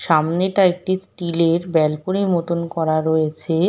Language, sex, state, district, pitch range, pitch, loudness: Bengali, female, West Bengal, Dakshin Dinajpur, 160-185 Hz, 170 Hz, -19 LUFS